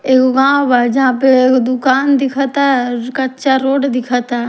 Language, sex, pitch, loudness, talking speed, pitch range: Bhojpuri, female, 260 Hz, -13 LUFS, 145 wpm, 250-270 Hz